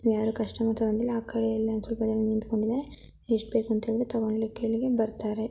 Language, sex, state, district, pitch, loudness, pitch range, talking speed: Kannada, female, Karnataka, Gulbarga, 225 Hz, -29 LUFS, 220-230 Hz, 110 wpm